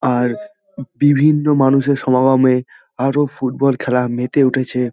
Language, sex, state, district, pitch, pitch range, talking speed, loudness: Bengali, male, West Bengal, Kolkata, 135 Hz, 125-145 Hz, 110 wpm, -16 LUFS